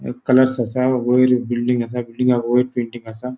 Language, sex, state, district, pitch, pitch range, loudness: Konkani, male, Goa, North and South Goa, 125 Hz, 120-125 Hz, -18 LUFS